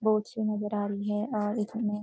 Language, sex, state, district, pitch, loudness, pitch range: Hindi, female, Uttarakhand, Uttarkashi, 210 Hz, -30 LUFS, 210-215 Hz